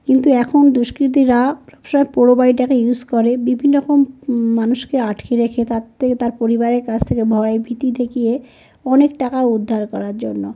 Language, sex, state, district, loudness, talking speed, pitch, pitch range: Bengali, male, West Bengal, North 24 Parganas, -16 LUFS, 170 wpm, 245 Hz, 230-265 Hz